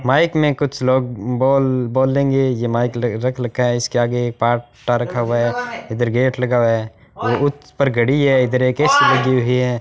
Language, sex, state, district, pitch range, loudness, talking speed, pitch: Hindi, male, Rajasthan, Bikaner, 120-135 Hz, -17 LUFS, 195 wpm, 125 Hz